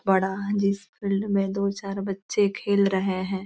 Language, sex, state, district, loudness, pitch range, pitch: Hindi, female, Bihar, East Champaran, -25 LUFS, 195-200 Hz, 195 Hz